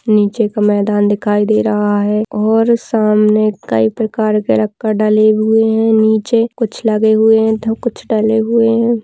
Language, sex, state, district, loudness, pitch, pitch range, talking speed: Hindi, female, Rajasthan, Nagaur, -13 LUFS, 215 Hz, 210-225 Hz, 170 wpm